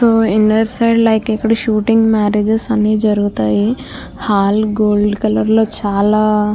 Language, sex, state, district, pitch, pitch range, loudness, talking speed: Telugu, female, Andhra Pradesh, Krishna, 215 Hz, 210-225 Hz, -14 LUFS, 130 wpm